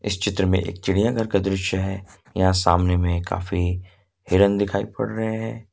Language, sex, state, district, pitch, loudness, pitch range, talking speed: Hindi, male, Jharkhand, Ranchi, 95 Hz, -22 LUFS, 90-100 Hz, 180 wpm